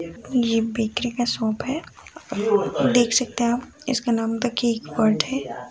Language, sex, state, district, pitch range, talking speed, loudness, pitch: Hindi, female, Chhattisgarh, Rajnandgaon, 220-245 Hz, 160 wpm, -23 LUFS, 230 Hz